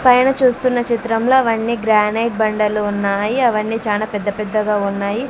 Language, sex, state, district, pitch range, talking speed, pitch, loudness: Telugu, female, Andhra Pradesh, Sri Satya Sai, 210-240 Hz, 135 wpm, 220 Hz, -17 LUFS